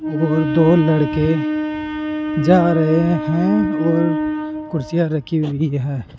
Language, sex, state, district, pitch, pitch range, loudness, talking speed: Hindi, male, Rajasthan, Jaipur, 155 Hz, 155-170 Hz, -18 LUFS, 105 wpm